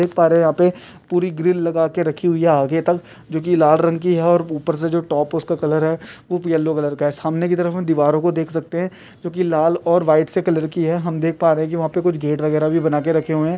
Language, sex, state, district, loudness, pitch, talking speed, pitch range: Hindi, male, Rajasthan, Churu, -18 LUFS, 165 Hz, 305 wpm, 155-175 Hz